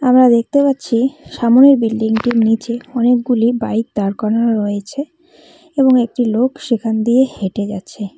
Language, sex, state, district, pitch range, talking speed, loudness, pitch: Bengali, female, West Bengal, Cooch Behar, 220-260 Hz, 130 wpm, -15 LUFS, 235 Hz